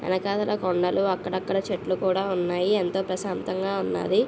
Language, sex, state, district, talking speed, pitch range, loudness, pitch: Telugu, female, Andhra Pradesh, Visakhapatnam, 140 wpm, 185-195 Hz, -26 LUFS, 190 Hz